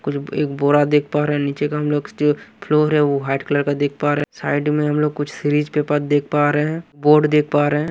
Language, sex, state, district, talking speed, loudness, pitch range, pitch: Hindi, male, Haryana, Rohtak, 290 wpm, -18 LUFS, 145-150 Hz, 145 Hz